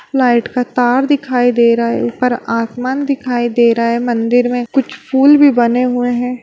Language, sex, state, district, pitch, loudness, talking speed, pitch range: Hindi, female, Bihar, Bhagalpur, 245 Hz, -13 LUFS, 195 wpm, 235-255 Hz